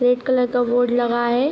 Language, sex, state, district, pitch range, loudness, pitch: Hindi, female, Uttar Pradesh, Hamirpur, 240-250 Hz, -19 LUFS, 245 Hz